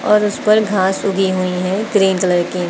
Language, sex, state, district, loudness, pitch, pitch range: Hindi, female, Uttar Pradesh, Lucknow, -16 LUFS, 195 Hz, 185-210 Hz